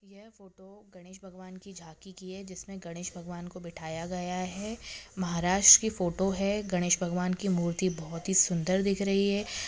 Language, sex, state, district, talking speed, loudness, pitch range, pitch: Hindi, female, Maharashtra, Pune, 180 wpm, -27 LUFS, 175-195 Hz, 185 Hz